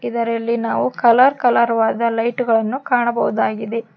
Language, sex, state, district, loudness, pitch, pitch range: Kannada, female, Karnataka, Koppal, -17 LUFS, 235 Hz, 230-245 Hz